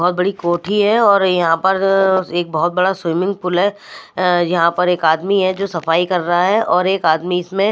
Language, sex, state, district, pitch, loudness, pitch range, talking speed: Hindi, female, Maharashtra, Mumbai Suburban, 180 Hz, -16 LUFS, 175-195 Hz, 220 wpm